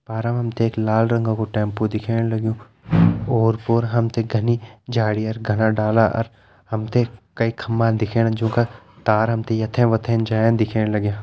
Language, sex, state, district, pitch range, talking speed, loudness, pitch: Hindi, male, Uttarakhand, Tehri Garhwal, 110-115 Hz, 185 wpm, -20 LUFS, 115 Hz